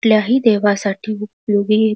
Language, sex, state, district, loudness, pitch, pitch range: Marathi, female, Karnataka, Belgaum, -16 LUFS, 215 Hz, 205-220 Hz